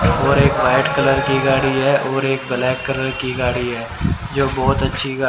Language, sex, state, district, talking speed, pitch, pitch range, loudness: Hindi, male, Haryana, Rohtak, 205 wpm, 135 Hz, 125-135 Hz, -17 LUFS